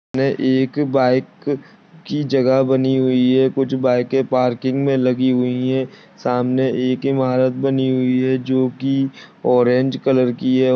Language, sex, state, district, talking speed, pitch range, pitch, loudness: Hindi, male, Uttar Pradesh, Deoria, 150 wpm, 125-135 Hz, 130 Hz, -18 LUFS